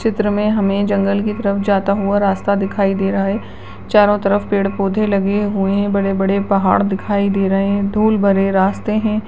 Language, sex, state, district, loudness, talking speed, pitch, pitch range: Hindi, female, Bihar, Supaul, -16 LUFS, 195 wpm, 200 Hz, 195-205 Hz